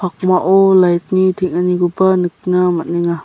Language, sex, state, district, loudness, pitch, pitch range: Garo, male, Meghalaya, South Garo Hills, -14 LUFS, 180 Hz, 175-185 Hz